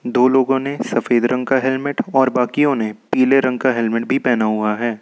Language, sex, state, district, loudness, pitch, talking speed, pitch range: Hindi, male, Uttar Pradesh, Lucknow, -17 LUFS, 130 Hz, 215 wpm, 120-135 Hz